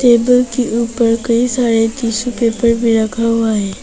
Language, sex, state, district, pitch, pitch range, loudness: Hindi, female, Arunachal Pradesh, Papum Pare, 230 Hz, 225-240 Hz, -14 LUFS